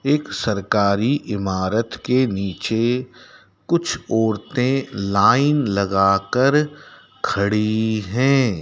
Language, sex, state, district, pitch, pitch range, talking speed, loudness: Hindi, male, Madhya Pradesh, Dhar, 110 Hz, 100-135 Hz, 75 wpm, -20 LUFS